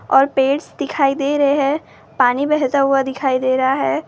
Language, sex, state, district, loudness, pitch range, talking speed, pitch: Hindi, female, Maharashtra, Gondia, -17 LUFS, 265-285 Hz, 205 wpm, 275 Hz